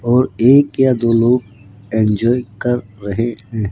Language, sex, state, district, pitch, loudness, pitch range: Hindi, male, Rajasthan, Jaipur, 115 Hz, -15 LUFS, 105-125 Hz